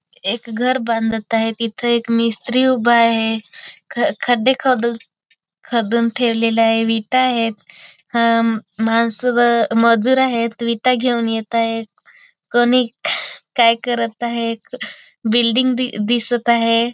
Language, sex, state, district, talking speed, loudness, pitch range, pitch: Marathi, female, Maharashtra, Dhule, 115 wpm, -17 LUFS, 230-240 Hz, 235 Hz